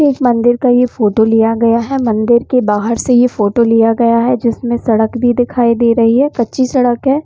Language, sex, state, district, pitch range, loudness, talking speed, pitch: Hindi, female, Jharkhand, Jamtara, 230-250 Hz, -12 LUFS, 215 wpm, 235 Hz